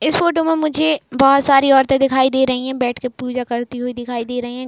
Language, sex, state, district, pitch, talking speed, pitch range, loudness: Hindi, female, Uttar Pradesh, Jalaun, 260 Hz, 255 wpm, 245-275 Hz, -16 LUFS